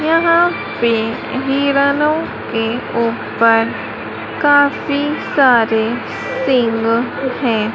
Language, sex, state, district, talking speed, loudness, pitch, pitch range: Hindi, female, Madhya Pradesh, Dhar, 70 wpm, -16 LUFS, 255 Hz, 230-285 Hz